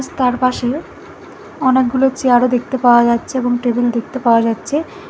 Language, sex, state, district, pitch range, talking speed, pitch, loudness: Bengali, female, Karnataka, Bangalore, 240-260 Hz, 155 wpm, 250 Hz, -15 LUFS